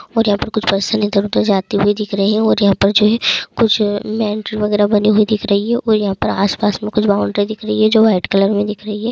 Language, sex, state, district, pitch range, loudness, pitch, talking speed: Hindi, female, Andhra Pradesh, Anantapur, 205-215 Hz, -15 LUFS, 210 Hz, 230 wpm